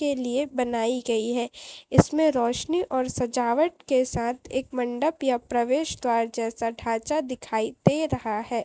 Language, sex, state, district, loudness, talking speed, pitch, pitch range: Hindi, female, Chhattisgarh, Raipur, -26 LUFS, 155 wpm, 250 Hz, 235-280 Hz